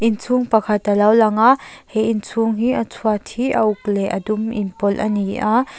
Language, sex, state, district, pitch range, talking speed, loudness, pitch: Mizo, female, Mizoram, Aizawl, 210-230 Hz, 195 wpm, -18 LUFS, 220 Hz